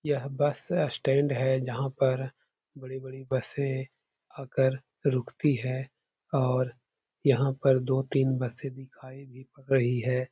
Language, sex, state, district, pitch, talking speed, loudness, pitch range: Hindi, male, Uttar Pradesh, Hamirpur, 130 Hz, 130 wpm, -29 LUFS, 130-135 Hz